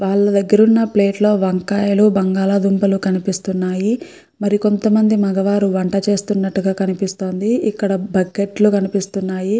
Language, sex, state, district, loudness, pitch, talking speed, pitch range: Telugu, female, Andhra Pradesh, Guntur, -16 LUFS, 200 Hz, 125 wpm, 195-210 Hz